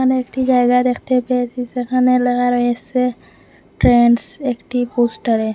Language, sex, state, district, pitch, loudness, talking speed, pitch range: Bengali, female, Assam, Hailakandi, 245 Hz, -17 LUFS, 120 wpm, 240-250 Hz